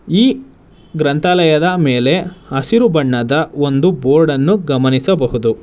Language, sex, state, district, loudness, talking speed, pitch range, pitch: Kannada, male, Karnataka, Bangalore, -14 LUFS, 95 wpm, 135-180 Hz, 155 Hz